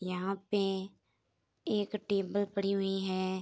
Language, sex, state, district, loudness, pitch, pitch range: Hindi, female, Bihar, Saharsa, -34 LUFS, 195 Hz, 185-200 Hz